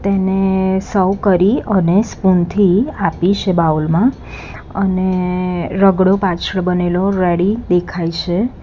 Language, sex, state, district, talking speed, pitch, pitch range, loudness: Gujarati, female, Gujarat, Gandhinagar, 120 wpm, 190 Hz, 180-195 Hz, -15 LUFS